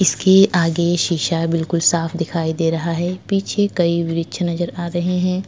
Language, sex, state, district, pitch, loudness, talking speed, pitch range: Hindi, male, Uttar Pradesh, Jyotiba Phule Nagar, 170 Hz, -18 LUFS, 175 wpm, 165-180 Hz